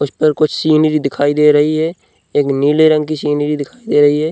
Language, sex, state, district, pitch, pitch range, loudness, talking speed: Hindi, male, Uttar Pradesh, Jyotiba Phule Nagar, 150 Hz, 145-155 Hz, -14 LUFS, 235 wpm